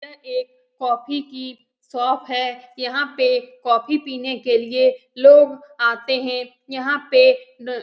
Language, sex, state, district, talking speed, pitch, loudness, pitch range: Hindi, female, Bihar, Lakhisarai, 145 wpm, 260 Hz, -19 LUFS, 250-290 Hz